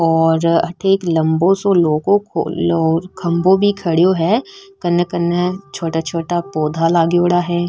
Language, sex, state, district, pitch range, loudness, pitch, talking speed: Marwari, female, Rajasthan, Nagaur, 165-190 Hz, -16 LUFS, 175 Hz, 140 wpm